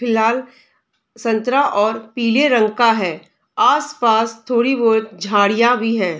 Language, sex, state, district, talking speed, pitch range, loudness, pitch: Hindi, female, Bihar, Darbhanga, 145 wpm, 220-245 Hz, -16 LUFS, 225 Hz